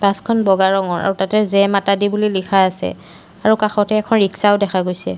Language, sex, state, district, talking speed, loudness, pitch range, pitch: Assamese, female, Assam, Sonitpur, 210 wpm, -16 LUFS, 190-210 Hz, 200 Hz